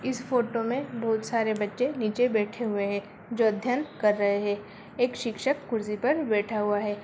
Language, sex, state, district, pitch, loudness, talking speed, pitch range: Hindi, female, Bihar, Bhagalpur, 220 Hz, -28 LUFS, 180 wpm, 210-245 Hz